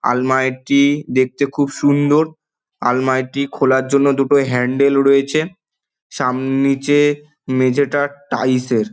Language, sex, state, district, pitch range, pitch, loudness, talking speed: Bengali, male, West Bengal, Dakshin Dinajpur, 130-145 Hz, 140 Hz, -16 LUFS, 105 wpm